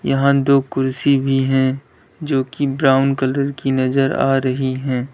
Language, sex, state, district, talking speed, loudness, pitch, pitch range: Hindi, male, Uttar Pradesh, Lalitpur, 150 wpm, -17 LUFS, 135 Hz, 130-140 Hz